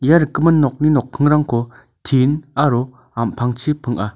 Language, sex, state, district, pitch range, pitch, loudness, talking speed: Garo, male, Meghalaya, North Garo Hills, 120-150 Hz, 135 Hz, -17 LUFS, 115 wpm